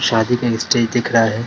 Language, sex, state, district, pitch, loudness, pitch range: Hindi, male, Bihar, Darbhanga, 115 Hz, -17 LUFS, 115-120 Hz